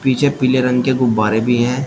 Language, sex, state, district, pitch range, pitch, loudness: Hindi, male, Uttar Pradesh, Shamli, 120-130 Hz, 125 Hz, -15 LUFS